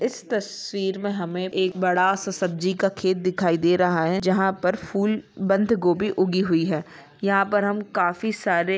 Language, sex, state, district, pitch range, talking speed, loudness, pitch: Hindi, female, Jharkhand, Jamtara, 180-200 Hz, 190 wpm, -23 LUFS, 190 Hz